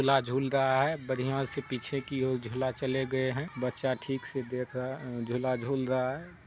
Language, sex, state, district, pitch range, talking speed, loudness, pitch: Hindi, male, Bihar, Saharsa, 130-135 Hz, 215 wpm, -31 LUFS, 130 Hz